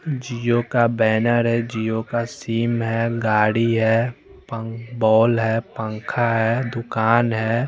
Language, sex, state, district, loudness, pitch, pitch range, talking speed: Hindi, male, Chandigarh, Chandigarh, -20 LUFS, 115 Hz, 110-120 Hz, 135 wpm